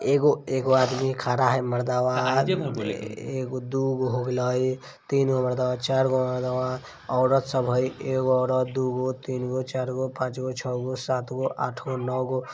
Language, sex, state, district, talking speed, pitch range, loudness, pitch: Maithili, male, Bihar, Vaishali, 170 wpm, 125-130 Hz, -26 LUFS, 130 Hz